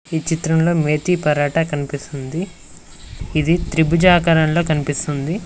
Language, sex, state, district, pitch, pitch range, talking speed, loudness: Telugu, male, Telangana, Mahabubabad, 160 Hz, 145-170 Hz, 100 wpm, -18 LUFS